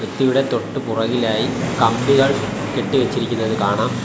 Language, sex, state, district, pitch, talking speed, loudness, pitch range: Malayalam, male, Kerala, Kollam, 115 Hz, 105 wpm, -19 LUFS, 110-135 Hz